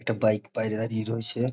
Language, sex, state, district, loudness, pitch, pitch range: Bengali, male, West Bengal, North 24 Parganas, -28 LUFS, 110 Hz, 110-115 Hz